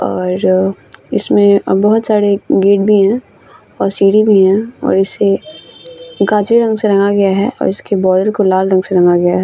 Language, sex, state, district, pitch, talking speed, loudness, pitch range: Hindi, female, Bihar, Vaishali, 200 Hz, 185 wpm, -12 LUFS, 190-215 Hz